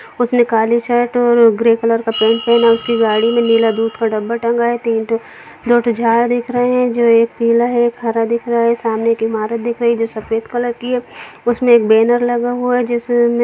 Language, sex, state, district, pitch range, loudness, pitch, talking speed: Hindi, female, Bihar, Jamui, 230-240 Hz, -14 LUFS, 235 Hz, 240 wpm